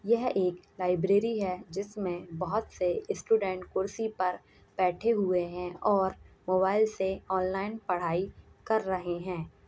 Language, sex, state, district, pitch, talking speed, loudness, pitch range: Hindi, female, Uttarakhand, Uttarkashi, 190 Hz, 130 wpm, -30 LUFS, 180-210 Hz